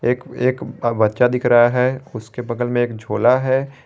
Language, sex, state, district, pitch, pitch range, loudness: Hindi, male, Jharkhand, Garhwa, 125 Hz, 120-125 Hz, -18 LUFS